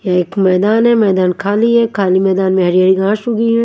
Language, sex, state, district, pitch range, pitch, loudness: Hindi, female, Punjab, Kapurthala, 185-225 Hz, 195 Hz, -13 LUFS